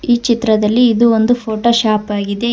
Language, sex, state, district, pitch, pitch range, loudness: Kannada, female, Karnataka, Koppal, 230 Hz, 215-235 Hz, -13 LUFS